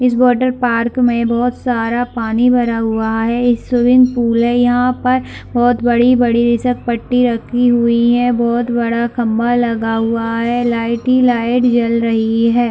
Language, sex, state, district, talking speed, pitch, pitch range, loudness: Hindi, female, Chhattisgarh, Bilaspur, 160 wpm, 240 Hz, 230-245 Hz, -14 LUFS